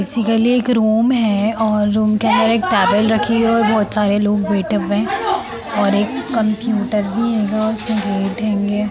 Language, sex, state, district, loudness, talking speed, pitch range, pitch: Hindi, female, Bihar, Jamui, -16 LUFS, 195 wpm, 205-230 Hz, 215 Hz